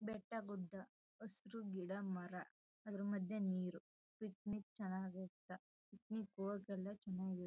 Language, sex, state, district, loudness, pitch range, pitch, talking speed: Kannada, female, Karnataka, Chamarajanagar, -48 LUFS, 190-210 Hz, 200 Hz, 90 wpm